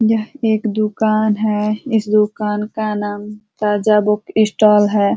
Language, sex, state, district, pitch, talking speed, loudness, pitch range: Hindi, female, Uttar Pradesh, Ghazipur, 215 Hz, 140 wpm, -16 LUFS, 210-215 Hz